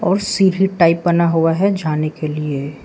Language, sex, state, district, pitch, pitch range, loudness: Hindi, male, Arunachal Pradesh, Lower Dibang Valley, 170 Hz, 155-190 Hz, -16 LUFS